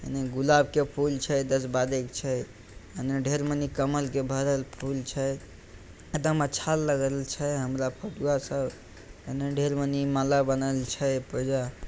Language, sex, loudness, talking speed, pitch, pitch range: Maithili, male, -28 LUFS, 155 wpm, 135 Hz, 130-140 Hz